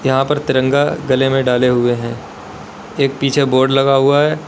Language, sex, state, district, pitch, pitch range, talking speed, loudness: Hindi, male, Uttar Pradesh, Lalitpur, 135 Hz, 130-140 Hz, 190 wpm, -14 LUFS